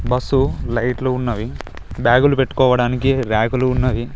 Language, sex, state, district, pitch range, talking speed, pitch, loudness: Telugu, male, Telangana, Mahabubabad, 120-130 Hz, 100 wpm, 125 Hz, -17 LUFS